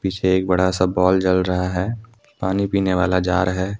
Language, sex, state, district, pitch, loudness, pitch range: Hindi, male, Jharkhand, Deoghar, 95 Hz, -19 LUFS, 90-95 Hz